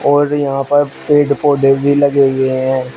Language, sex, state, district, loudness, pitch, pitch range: Hindi, male, Uttar Pradesh, Shamli, -13 LUFS, 140 Hz, 135-145 Hz